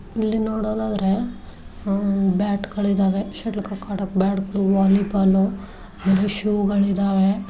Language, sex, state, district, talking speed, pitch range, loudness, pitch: Kannada, female, Karnataka, Dharwad, 110 wpm, 195-205 Hz, -21 LUFS, 200 Hz